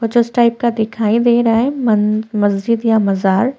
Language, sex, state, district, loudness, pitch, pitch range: Hindi, female, Chhattisgarh, Korba, -15 LUFS, 225 Hz, 215-235 Hz